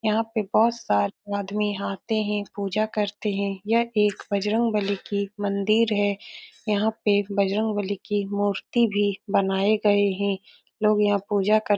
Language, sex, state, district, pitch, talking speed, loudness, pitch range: Hindi, female, Uttar Pradesh, Etah, 205 Hz, 175 wpm, -24 LUFS, 200-215 Hz